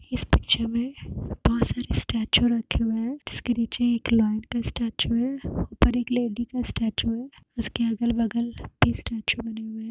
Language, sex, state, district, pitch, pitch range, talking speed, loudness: Hindi, female, Uttar Pradesh, Hamirpur, 235 Hz, 225-240 Hz, 185 wpm, -26 LUFS